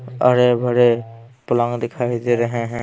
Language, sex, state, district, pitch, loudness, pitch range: Hindi, male, Bihar, Patna, 120 Hz, -18 LUFS, 120-125 Hz